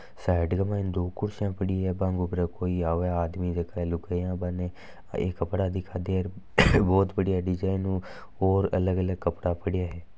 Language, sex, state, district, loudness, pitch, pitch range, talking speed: Marwari, male, Rajasthan, Nagaur, -28 LUFS, 90 Hz, 90-95 Hz, 165 wpm